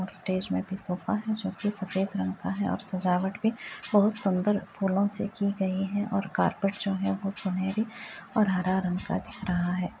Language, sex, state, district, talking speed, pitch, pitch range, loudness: Hindi, female, Bihar, Muzaffarpur, 200 wpm, 195 Hz, 185-205 Hz, -29 LUFS